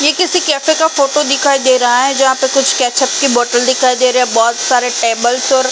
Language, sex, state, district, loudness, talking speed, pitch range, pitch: Hindi, female, Uttar Pradesh, Jalaun, -11 LUFS, 250 wpm, 245-275 Hz, 260 Hz